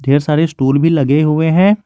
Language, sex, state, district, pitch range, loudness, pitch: Hindi, male, Jharkhand, Garhwa, 140-165 Hz, -13 LUFS, 155 Hz